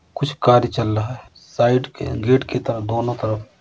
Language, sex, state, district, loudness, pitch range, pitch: Hindi, male, Uttar Pradesh, Jalaun, -20 LUFS, 110-130 Hz, 120 Hz